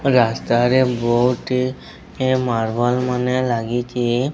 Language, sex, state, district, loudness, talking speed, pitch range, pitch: Odia, male, Odisha, Sambalpur, -19 LUFS, 95 wpm, 120-130 Hz, 125 Hz